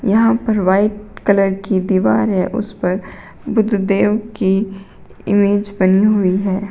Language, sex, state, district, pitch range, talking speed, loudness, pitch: Hindi, female, Uttar Pradesh, Shamli, 190-210 Hz, 135 wpm, -16 LUFS, 200 Hz